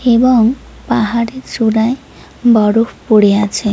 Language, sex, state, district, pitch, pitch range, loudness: Bengali, female, West Bengal, Jalpaiguri, 225 Hz, 215-240 Hz, -13 LUFS